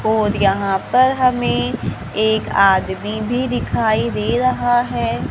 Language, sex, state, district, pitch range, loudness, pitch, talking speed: Hindi, female, Maharashtra, Gondia, 195-245 Hz, -17 LUFS, 220 Hz, 125 wpm